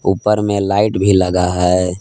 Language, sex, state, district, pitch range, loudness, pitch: Hindi, male, Jharkhand, Palamu, 90-100 Hz, -15 LUFS, 95 Hz